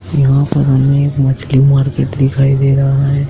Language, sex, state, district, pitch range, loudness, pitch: Hindi, male, Madhya Pradesh, Dhar, 135-140 Hz, -12 LUFS, 135 Hz